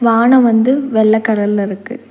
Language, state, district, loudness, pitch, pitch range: Tamil, Tamil Nadu, Nilgiris, -12 LUFS, 225 Hz, 215-245 Hz